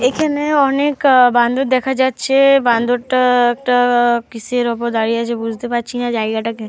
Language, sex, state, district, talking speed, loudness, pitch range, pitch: Bengali, female, Jharkhand, Jamtara, 135 wpm, -15 LUFS, 235-265 Hz, 245 Hz